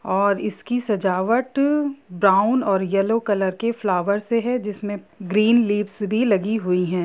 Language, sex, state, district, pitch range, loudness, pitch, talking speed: Hindi, female, Jharkhand, Jamtara, 195-230 Hz, -21 LUFS, 210 Hz, 155 wpm